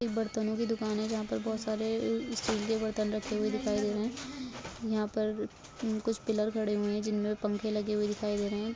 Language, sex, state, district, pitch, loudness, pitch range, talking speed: Hindi, female, Chhattisgarh, Bilaspur, 215 Hz, -33 LUFS, 210-225 Hz, 225 wpm